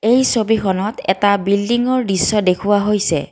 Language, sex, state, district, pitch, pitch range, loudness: Assamese, female, Assam, Kamrup Metropolitan, 205 Hz, 195-230 Hz, -16 LUFS